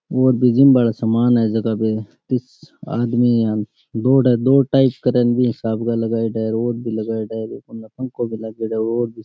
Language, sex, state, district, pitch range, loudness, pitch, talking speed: Rajasthani, male, Rajasthan, Nagaur, 110-125 Hz, -18 LUFS, 115 Hz, 95 wpm